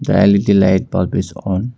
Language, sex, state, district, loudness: English, male, Arunachal Pradesh, Longding, -15 LUFS